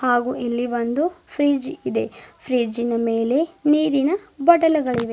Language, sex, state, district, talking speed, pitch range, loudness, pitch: Kannada, female, Karnataka, Bidar, 105 wpm, 240-310 Hz, -21 LUFS, 265 Hz